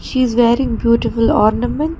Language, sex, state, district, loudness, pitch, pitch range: English, female, Karnataka, Bangalore, -15 LUFS, 235 Hz, 230-255 Hz